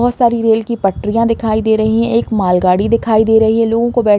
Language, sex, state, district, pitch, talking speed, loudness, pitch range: Hindi, female, Uttar Pradesh, Varanasi, 225 Hz, 285 wpm, -13 LUFS, 215-230 Hz